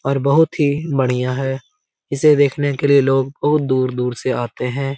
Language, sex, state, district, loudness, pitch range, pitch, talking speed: Hindi, male, Bihar, Lakhisarai, -17 LUFS, 130-145 Hz, 135 Hz, 180 wpm